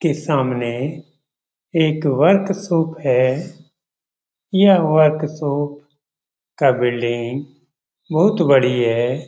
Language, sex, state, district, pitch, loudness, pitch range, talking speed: Hindi, male, Bihar, Jamui, 150 Hz, -18 LUFS, 135-165 Hz, 80 wpm